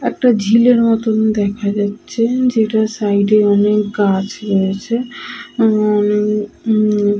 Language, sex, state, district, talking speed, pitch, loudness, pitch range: Bengali, female, West Bengal, Purulia, 90 wpm, 210 Hz, -15 LUFS, 205-225 Hz